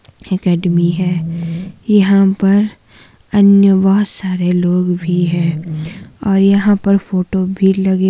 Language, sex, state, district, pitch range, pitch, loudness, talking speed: Hindi, female, Himachal Pradesh, Shimla, 175-195 Hz, 190 Hz, -14 LUFS, 125 wpm